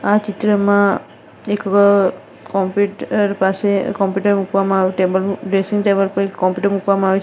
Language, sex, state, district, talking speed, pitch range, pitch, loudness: Gujarati, female, Gujarat, Valsad, 150 wpm, 195-205 Hz, 195 Hz, -17 LUFS